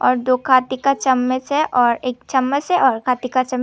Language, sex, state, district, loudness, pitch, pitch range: Hindi, female, Tripura, Unakoti, -18 LUFS, 255 Hz, 250-265 Hz